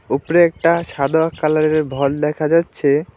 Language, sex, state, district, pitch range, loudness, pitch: Bengali, male, West Bengal, Alipurduar, 140-165 Hz, -17 LUFS, 155 Hz